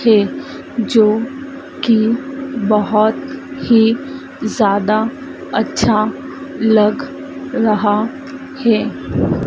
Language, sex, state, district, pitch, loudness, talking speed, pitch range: Hindi, female, Madhya Pradesh, Dhar, 235 Hz, -16 LUFS, 65 wpm, 215-275 Hz